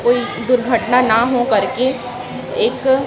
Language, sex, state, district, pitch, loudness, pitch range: Hindi, female, Chhattisgarh, Raipur, 245 Hz, -16 LUFS, 240-255 Hz